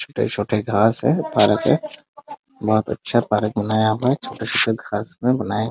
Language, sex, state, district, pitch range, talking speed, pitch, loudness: Hindi, male, Bihar, Muzaffarpur, 105-145 Hz, 180 wpm, 110 Hz, -19 LUFS